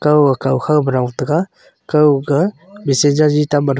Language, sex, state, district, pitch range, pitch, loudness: Wancho, male, Arunachal Pradesh, Longding, 135-150 Hz, 145 Hz, -15 LUFS